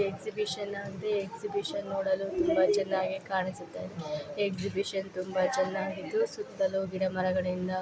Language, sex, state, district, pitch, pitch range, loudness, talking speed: Kannada, female, Karnataka, Mysore, 195 Hz, 185-205 Hz, -31 LUFS, 145 wpm